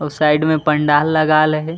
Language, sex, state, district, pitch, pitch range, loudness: Chhattisgarhi, male, Chhattisgarh, Raigarh, 155 Hz, 150-155 Hz, -15 LUFS